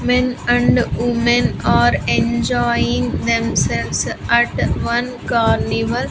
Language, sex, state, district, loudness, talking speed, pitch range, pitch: English, female, Andhra Pradesh, Sri Satya Sai, -17 LUFS, 90 wpm, 240-250 Hz, 240 Hz